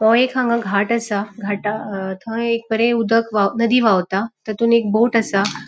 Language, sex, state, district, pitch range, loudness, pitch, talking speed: Konkani, female, Goa, North and South Goa, 205-230 Hz, -18 LUFS, 225 Hz, 190 wpm